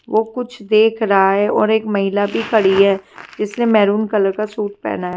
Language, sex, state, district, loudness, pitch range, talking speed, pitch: Hindi, female, Punjab, Fazilka, -16 LUFS, 200-220 Hz, 210 wpm, 210 Hz